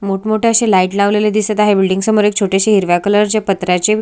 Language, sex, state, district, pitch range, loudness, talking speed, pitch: Marathi, female, Maharashtra, Solapur, 195-215 Hz, -13 LUFS, 225 wpm, 205 Hz